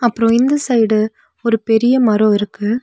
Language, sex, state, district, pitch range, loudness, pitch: Tamil, female, Tamil Nadu, Nilgiris, 215-240 Hz, -15 LUFS, 230 Hz